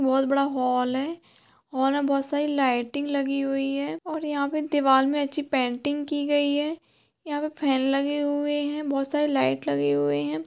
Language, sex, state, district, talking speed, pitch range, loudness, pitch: Hindi, female, Jharkhand, Sahebganj, 195 wpm, 265-290 Hz, -25 LUFS, 280 Hz